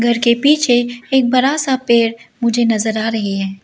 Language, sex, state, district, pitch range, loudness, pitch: Hindi, female, Arunachal Pradesh, Lower Dibang Valley, 225-255 Hz, -15 LUFS, 235 Hz